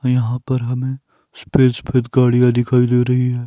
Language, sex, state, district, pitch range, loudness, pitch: Hindi, male, Himachal Pradesh, Shimla, 125-130 Hz, -17 LUFS, 125 Hz